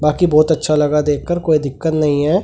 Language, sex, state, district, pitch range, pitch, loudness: Hindi, male, Delhi, New Delhi, 150-160 Hz, 150 Hz, -15 LUFS